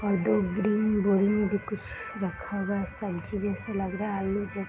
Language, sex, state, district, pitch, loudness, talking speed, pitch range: Hindi, female, Jharkhand, Jamtara, 200 Hz, -29 LUFS, 215 wpm, 195-205 Hz